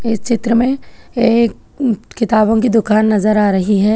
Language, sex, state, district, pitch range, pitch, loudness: Hindi, female, Telangana, Hyderabad, 215-235 Hz, 225 Hz, -14 LUFS